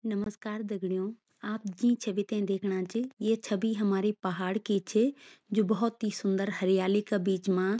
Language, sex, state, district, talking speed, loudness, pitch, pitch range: Garhwali, female, Uttarakhand, Tehri Garhwal, 170 wpm, -30 LUFS, 205 Hz, 195-220 Hz